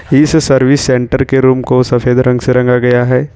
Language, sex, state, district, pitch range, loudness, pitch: Hindi, male, Jharkhand, Ranchi, 125-135 Hz, -10 LUFS, 125 Hz